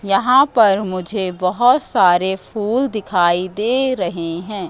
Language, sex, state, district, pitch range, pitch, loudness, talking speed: Hindi, female, Madhya Pradesh, Katni, 185-240 Hz, 200 Hz, -17 LUFS, 125 wpm